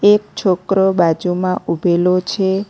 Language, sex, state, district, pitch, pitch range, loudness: Gujarati, female, Gujarat, Navsari, 185 Hz, 180-195 Hz, -16 LUFS